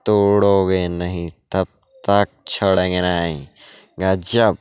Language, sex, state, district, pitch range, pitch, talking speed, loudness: Hindi, male, Bihar, Darbhanga, 90-100 Hz, 95 Hz, 90 wpm, -19 LUFS